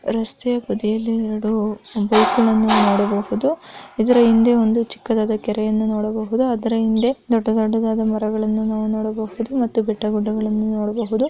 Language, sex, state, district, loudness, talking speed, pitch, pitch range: Kannada, female, Karnataka, Mysore, -19 LUFS, 110 wpm, 220 Hz, 215-230 Hz